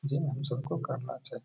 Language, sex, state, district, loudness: Hindi, male, Bihar, Gaya, -34 LUFS